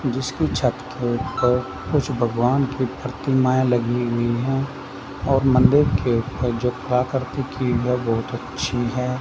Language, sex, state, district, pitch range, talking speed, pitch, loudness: Hindi, male, Haryana, Charkhi Dadri, 120-130 Hz, 130 wpm, 125 Hz, -21 LUFS